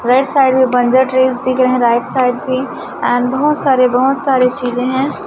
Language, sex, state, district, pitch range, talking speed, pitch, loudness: Hindi, male, Chhattisgarh, Raipur, 245-265 Hz, 180 wpm, 255 Hz, -13 LUFS